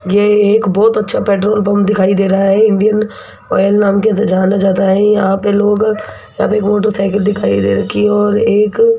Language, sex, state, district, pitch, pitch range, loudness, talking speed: Hindi, female, Rajasthan, Jaipur, 205 Hz, 195-210 Hz, -12 LUFS, 195 wpm